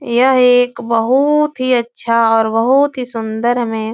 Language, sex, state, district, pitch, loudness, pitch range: Hindi, female, Uttar Pradesh, Etah, 240 Hz, -14 LUFS, 230-255 Hz